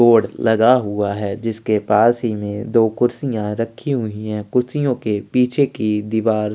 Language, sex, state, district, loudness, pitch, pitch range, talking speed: Hindi, male, Chhattisgarh, Sukma, -18 LUFS, 110 Hz, 105-120 Hz, 175 wpm